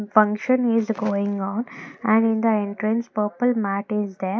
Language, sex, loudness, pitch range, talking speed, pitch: English, female, -22 LUFS, 205-230 Hz, 165 wpm, 215 Hz